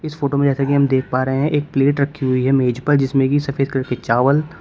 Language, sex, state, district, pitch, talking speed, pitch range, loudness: Hindi, male, Uttar Pradesh, Shamli, 135 Hz, 300 wpm, 130-140 Hz, -18 LUFS